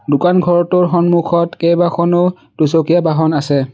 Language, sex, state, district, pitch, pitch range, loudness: Assamese, male, Assam, Sonitpur, 170 Hz, 160-175 Hz, -13 LUFS